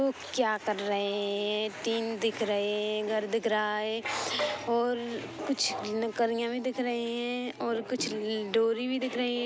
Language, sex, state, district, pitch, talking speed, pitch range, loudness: Hindi, female, Chhattisgarh, Bilaspur, 225 Hz, 150 wpm, 215-240 Hz, -30 LUFS